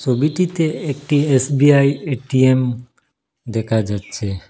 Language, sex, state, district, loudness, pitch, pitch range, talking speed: Bengali, male, Assam, Hailakandi, -17 LUFS, 130 Hz, 115-145 Hz, 80 wpm